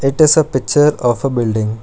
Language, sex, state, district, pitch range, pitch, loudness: English, male, Karnataka, Bangalore, 120-150 Hz, 135 Hz, -14 LUFS